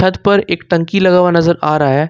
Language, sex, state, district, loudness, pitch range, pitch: Hindi, male, Jharkhand, Ranchi, -12 LUFS, 160-185 Hz, 175 Hz